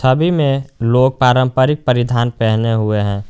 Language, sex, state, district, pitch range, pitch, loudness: Hindi, male, Jharkhand, Garhwa, 115-130 Hz, 125 Hz, -15 LUFS